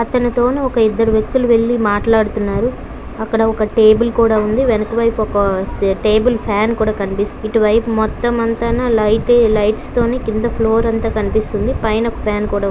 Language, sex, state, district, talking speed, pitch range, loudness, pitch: Telugu, female, Karnataka, Bellary, 125 wpm, 215-230 Hz, -15 LUFS, 220 Hz